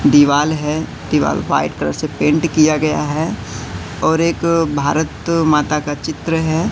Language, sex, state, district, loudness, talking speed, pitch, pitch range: Hindi, male, Madhya Pradesh, Katni, -17 LUFS, 150 wpm, 155 Hz, 145-160 Hz